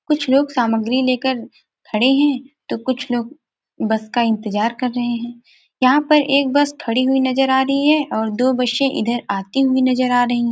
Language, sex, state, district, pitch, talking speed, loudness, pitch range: Hindi, female, Bihar, Gopalganj, 255 Hz, 200 wpm, -18 LUFS, 235-275 Hz